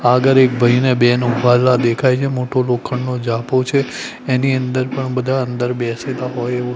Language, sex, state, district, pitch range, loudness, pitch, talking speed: Gujarati, male, Gujarat, Gandhinagar, 125-130 Hz, -16 LUFS, 125 Hz, 175 wpm